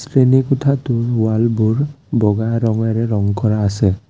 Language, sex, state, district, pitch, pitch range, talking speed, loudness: Assamese, male, Assam, Kamrup Metropolitan, 115 Hz, 110-130 Hz, 115 wpm, -16 LUFS